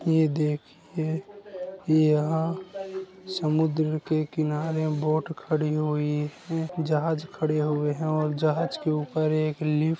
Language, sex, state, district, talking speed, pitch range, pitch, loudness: Hindi, male, Uttar Pradesh, Hamirpur, 125 wpm, 155-165 Hz, 155 Hz, -27 LUFS